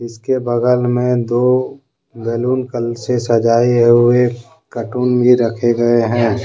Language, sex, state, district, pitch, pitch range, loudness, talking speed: Hindi, male, Jharkhand, Deoghar, 120 Hz, 115-125 Hz, -15 LUFS, 150 wpm